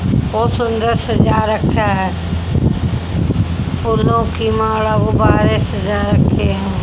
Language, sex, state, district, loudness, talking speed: Hindi, female, Haryana, Jhajjar, -15 LUFS, 105 wpm